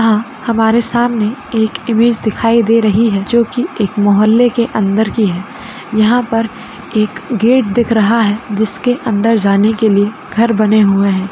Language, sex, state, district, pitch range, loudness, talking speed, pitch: Hindi, female, Rajasthan, Churu, 210-235 Hz, -13 LUFS, 170 wpm, 225 Hz